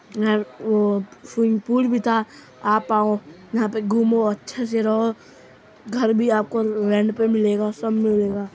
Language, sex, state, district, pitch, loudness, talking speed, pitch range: Hindi, male, Uttar Pradesh, Muzaffarnagar, 220 Hz, -21 LUFS, 145 wpm, 210-230 Hz